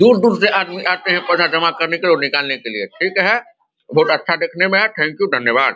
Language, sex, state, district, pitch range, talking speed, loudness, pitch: Hindi, male, Bihar, Vaishali, 160-195 Hz, 260 wpm, -16 LUFS, 175 Hz